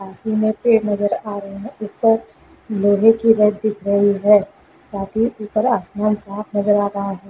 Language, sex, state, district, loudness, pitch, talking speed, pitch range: Hindi, female, Bihar, Lakhisarai, -18 LUFS, 210 Hz, 180 wpm, 200-215 Hz